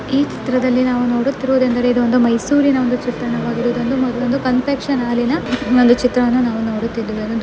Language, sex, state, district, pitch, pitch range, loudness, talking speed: Kannada, female, Karnataka, Mysore, 250 Hz, 240-255 Hz, -16 LUFS, 120 wpm